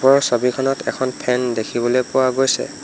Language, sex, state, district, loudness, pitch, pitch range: Assamese, male, Assam, Hailakandi, -18 LUFS, 130 Hz, 125-135 Hz